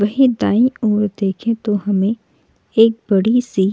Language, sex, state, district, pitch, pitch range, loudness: Hindi, female, Uttar Pradesh, Jalaun, 215 Hz, 200-230 Hz, -16 LUFS